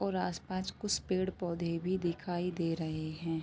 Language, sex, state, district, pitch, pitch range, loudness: Hindi, female, Jharkhand, Sahebganj, 175 Hz, 165-185 Hz, -35 LUFS